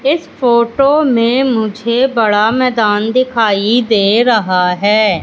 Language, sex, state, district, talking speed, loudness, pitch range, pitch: Hindi, female, Madhya Pradesh, Katni, 115 wpm, -12 LUFS, 210-255 Hz, 230 Hz